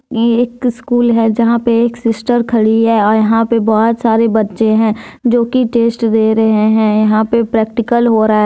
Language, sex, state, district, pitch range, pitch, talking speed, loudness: Hindi, female, Jharkhand, Deoghar, 220-235 Hz, 230 Hz, 200 wpm, -12 LUFS